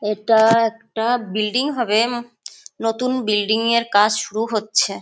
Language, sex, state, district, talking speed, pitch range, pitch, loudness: Bengali, female, West Bengal, Kolkata, 120 wpm, 215-235 Hz, 225 Hz, -19 LUFS